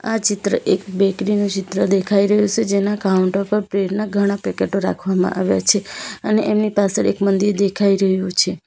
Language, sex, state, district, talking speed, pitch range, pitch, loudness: Gujarati, female, Gujarat, Valsad, 185 wpm, 190-205 Hz, 200 Hz, -18 LUFS